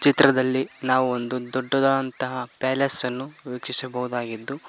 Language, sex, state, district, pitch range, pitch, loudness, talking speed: Kannada, male, Karnataka, Koppal, 125-135 Hz, 130 Hz, -22 LUFS, 90 wpm